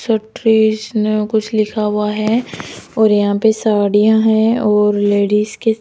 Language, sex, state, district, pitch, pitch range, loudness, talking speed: Hindi, female, Rajasthan, Jaipur, 215 Hz, 210-220 Hz, -14 LUFS, 145 wpm